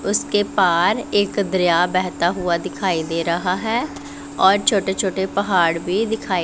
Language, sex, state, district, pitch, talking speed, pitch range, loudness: Hindi, female, Punjab, Pathankot, 190 Hz, 150 wpm, 175-205 Hz, -19 LUFS